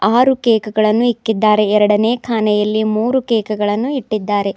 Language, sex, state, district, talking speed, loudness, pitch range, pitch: Kannada, female, Karnataka, Bidar, 130 wpm, -15 LUFS, 210-235 Hz, 215 Hz